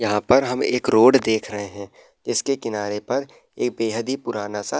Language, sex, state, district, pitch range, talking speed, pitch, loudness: Hindi, male, Uttar Pradesh, Muzaffarnagar, 105-125 Hz, 210 wpm, 110 Hz, -21 LUFS